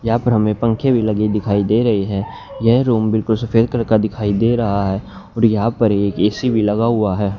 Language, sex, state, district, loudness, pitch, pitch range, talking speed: Hindi, male, Haryana, Rohtak, -17 LUFS, 110 Hz, 105-115 Hz, 235 wpm